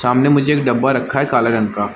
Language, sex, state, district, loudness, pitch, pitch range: Hindi, male, Chhattisgarh, Rajnandgaon, -15 LUFS, 125 Hz, 115-135 Hz